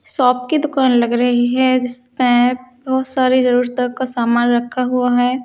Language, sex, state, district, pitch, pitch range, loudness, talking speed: Hindi, female, Haryana, Charkhi Dadri, 250 Hz, 245-255 Hz, -16 LUFS, 165 wpm